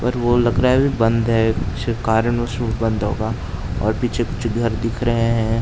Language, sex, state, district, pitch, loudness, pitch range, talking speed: Hindi, male, Uttar Pradesh, Jalaun, 115 Hz, -19 LUFS, 110-120 Hz, 200 wpm